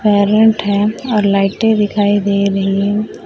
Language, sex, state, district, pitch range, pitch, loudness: Hindi, female, Jharkhand, Deoghar, 200-215 Hz, 205 Hz, -14 LUFS